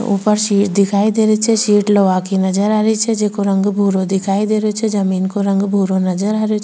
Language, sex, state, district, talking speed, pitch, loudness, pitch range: Rajasthani, female, Rajasthan, Churu, 255 wpm, 205 Hz, -15 LUFS, 195-215 Hz